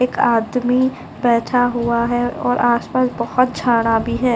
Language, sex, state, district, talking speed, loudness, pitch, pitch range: Hindi, female, Maharashtra, Chandrapur, 150 wpm, -17 LUFS, 240 Hz, 235-250 Hz